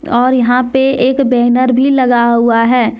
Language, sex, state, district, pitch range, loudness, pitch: Hindi, female, Jharkhand, Deoghar, 240-260 Hz, -11 LUFS, 250 Hz